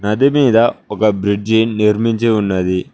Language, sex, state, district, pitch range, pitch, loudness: Telugu, male, Telangana, Mahabubabad, 100-115 Hz, 110 Hz, -14 LUFS